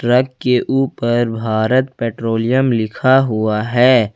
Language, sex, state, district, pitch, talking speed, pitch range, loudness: Hindi, male, Jharkhand, Ranchi, 120 Hz, 115 wpm, 115-130 Hz, -16 LUFS